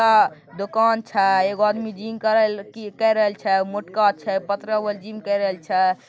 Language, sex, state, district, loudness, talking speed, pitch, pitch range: Maithili, male, Bihar, Begusarai, -21 LUFS, 165 wpm, 210 Hz, 200-220 Hz